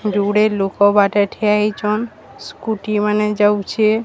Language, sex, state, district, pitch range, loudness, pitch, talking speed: Odia, female, Odisha, Sambalpur, 205-215 Hz, -16 LUFS, 210 Hz, 120 wpm